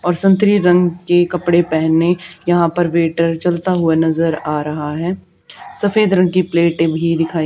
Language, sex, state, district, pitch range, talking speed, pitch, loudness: Hindi, female, Haryana, Charkhi Dadri, 165-180 Hz, 170 wpm, 170 Hz, -15 LUFS